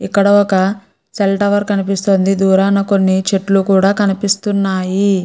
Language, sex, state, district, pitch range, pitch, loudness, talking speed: Telugu, female, Andhra Pradesh, Guntur, 195-200 Hz, 195 Hz, -14 LUFS, 115 wpm